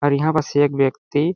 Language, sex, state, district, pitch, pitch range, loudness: Hindi, male, Chhattisgarh, Balrampur, 145 Hz, 140-155 Hz, -19 LUFS